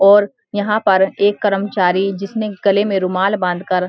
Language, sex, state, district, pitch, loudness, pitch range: Hindi, female, Uttarakhand, Uttarkashi, 195 Hz, -16 LUFS, 190-205 Hz